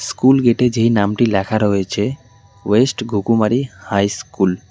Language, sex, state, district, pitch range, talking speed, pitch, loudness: Bengali, male, West Bengal, Cooch Behar, 100-125 Hz, 140 wpm, 110 Hz, -16 LUFS